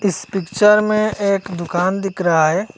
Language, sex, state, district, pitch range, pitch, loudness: Hindi, male, Assam, Hailakandi, 180-210 Hz, 195 Hz, -17 LUFS